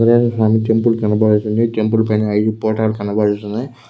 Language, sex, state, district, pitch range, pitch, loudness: Telugu, male, Andhra Pradesh, Krishna, 105-115 Hz, 110 Hz, -16 LUFS